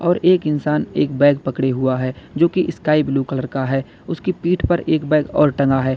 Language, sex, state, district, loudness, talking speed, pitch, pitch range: Hindi, male, Uttar Pradesh, Lalitpur, -18 LUFS, 230 wpm, 150 Hz, 135-170 Hz